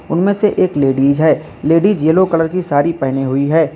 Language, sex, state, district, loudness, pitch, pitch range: Hindi, male, Uttar Pradesh, Lalitpur, -14 LUFS, 160 Hz, 140-180 Hz